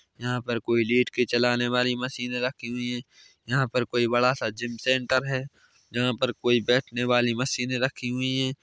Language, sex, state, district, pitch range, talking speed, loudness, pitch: Hindi, male, Chhattisgarh, Bilaspur, 120-130 Hz, 200 wpm, -26 LUFS, 125 Hz